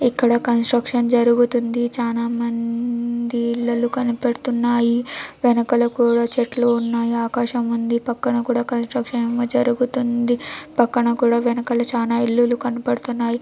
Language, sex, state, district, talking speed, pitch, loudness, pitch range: Telugu, female, Andhra Pradesh, Anantapur, 110 wpm, 240 Hz, -20 LUFS, 235-245 Hz